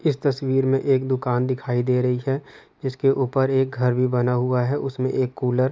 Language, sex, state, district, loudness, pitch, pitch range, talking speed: Hindi, male, Chhattisgarh, Rajnandgaon, -22 LUFS, 130 Hz, 125-135 Hz, 220 wpm